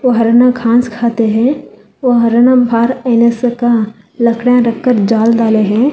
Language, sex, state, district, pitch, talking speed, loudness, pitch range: Hindi, female, Telangana, Hyderabad, 235 Hz, 140 wpm, -11 LUFS, 230-245 Hz